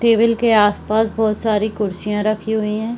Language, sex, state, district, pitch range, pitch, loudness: Hindi, female, Bihar, Purnia, 210-225 Hz, 215 Hz, -17 LUFS